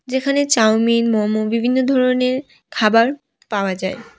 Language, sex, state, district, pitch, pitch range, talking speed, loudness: Bengali, female, West Bengal, Alipurduar, 235 Hz, 220-260 Hz, 115 wpm, -17 LUFS